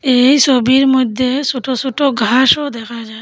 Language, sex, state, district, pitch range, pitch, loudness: Bengali, female, Assam, Hailakandi, 250-270 Hz, 260 Hz, -13 LUFS